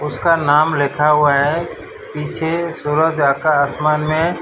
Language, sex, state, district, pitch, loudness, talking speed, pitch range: Hindi, male, Gujarat, Valsad, 150 Hz, -16 LUFS, 150 wpm, 145-160 Hz